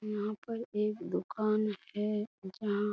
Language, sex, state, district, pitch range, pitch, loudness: Hindi, female, Bihar, Kishanganj, 210-215 Hz, 210 Hz, -35 LUFS